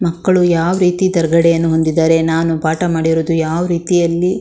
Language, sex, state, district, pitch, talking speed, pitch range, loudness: Kannada, female, Karnataka, Shimoga, 165 Hz, 135 wpm, 165-175 Hz, -14 LUFS